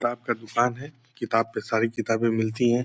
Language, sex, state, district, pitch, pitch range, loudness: Hindi, male, Bihar, Purnia, 120 Hz, 115-120 Hz, -25 LUFS